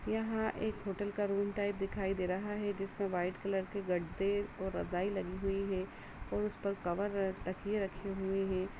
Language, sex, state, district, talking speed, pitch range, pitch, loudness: Hindi, female, Chhattisgarh, Kabirdham, 185 wpm, 185-205 Hz, 195 Hz, -37 LUFS